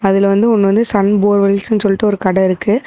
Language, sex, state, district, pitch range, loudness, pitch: Tamil, female, Tamil Nadu, Namakkal, 195-210 Hz, -13 LUFS, 200 Hz